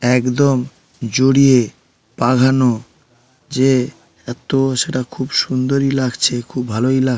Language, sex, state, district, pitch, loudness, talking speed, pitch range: Bengali, male, West Bengal, Paschim Medinipur, 130 Hz, -16 LUFS, 110 wpm, 125-135 Hz